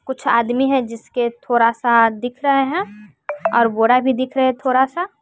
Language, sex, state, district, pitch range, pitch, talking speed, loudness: Hindi, male, Bihar, West Champaran, 235-270 Hz, 255 Hz, 185 wpm, -17 LUFS